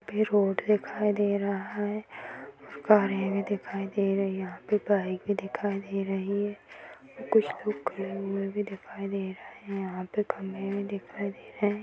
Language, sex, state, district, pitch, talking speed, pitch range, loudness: Hindi, female, Uttar Pradesh, Etah, 200 Hz, 195 wpm, 195-205 Hz, -30 LUFS